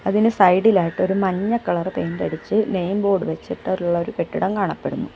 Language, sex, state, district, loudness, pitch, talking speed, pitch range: Malayalam, female, Kerala, Kollam, -20 LUFS, 190 Hz, 140 wpm, 175-205 Hz